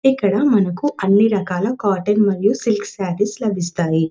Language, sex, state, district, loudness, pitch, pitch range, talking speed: Telugu, female, Telangana, Nalgonda, -18 LUFS, 205 Hz, 190-215 Hz, 130 wpm